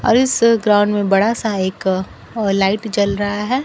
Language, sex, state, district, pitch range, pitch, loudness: Hindi, female, Bihar, Kaimur, 195-230 Hz, 205 Hz, -16 LUFS